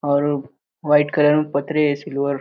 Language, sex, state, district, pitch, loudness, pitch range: Hindi, male, Maharashtra, Aurangabad, 145 Hz, -19 LUFS, 140-150 Hz